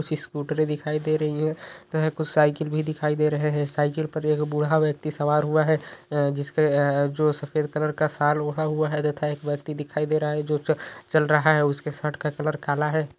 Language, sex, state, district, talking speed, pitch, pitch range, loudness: Hindi, male, Uttar Pradesh, Ghazipur, 220 wpm, 150 Hz, 150-155 Hz, -24 LUFS